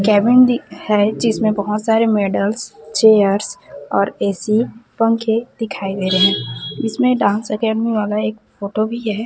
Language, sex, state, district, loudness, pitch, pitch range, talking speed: Hindi, female, Chhattisgarh, Raipur, -17 LUFS, 220 Hz, 205-230 Hz, 140 wpm